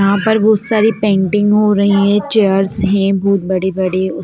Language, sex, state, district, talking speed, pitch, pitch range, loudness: Hindi, female, Bihar, Sitamarhi, 185 wpm, 200 Hz, 195-210 Hz, -13 LUFS